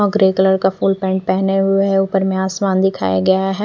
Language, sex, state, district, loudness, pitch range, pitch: Hindi, female, Chandigarh, Chandigarh, -16 LUFS, 190-195 Hz, 190 Hz